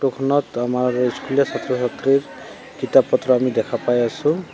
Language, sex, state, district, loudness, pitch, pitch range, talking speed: Assamese, male, Assam, Sonitpur, -19 LUFS, 125 Hz, 125-135 Hz, 130 wpm